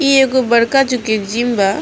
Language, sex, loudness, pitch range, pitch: Bhojpuri, female, -14 LUFS, 220-265 Hz, 240 Hz